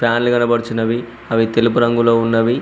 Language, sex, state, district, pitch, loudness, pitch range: Telugu, male, Telangana, Mahabubabad, 115 Hz, -16 LUFS, 115-120 Hz